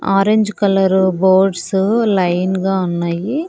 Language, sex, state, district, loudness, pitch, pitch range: Telugu, female, Andhra Pradesh, Annamaya, -15 LUFS, 190 Hz, 185-200 Hz